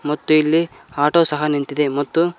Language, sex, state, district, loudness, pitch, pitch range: Kannada, male, Karnataka, Koppal, -17 LUFS, 150 Hz, 145-165 Hz